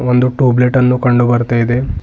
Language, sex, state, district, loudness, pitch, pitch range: Kannada, male, Karnataka, Bidar, -12 LUFS, 125 Hz, 120-125 Hz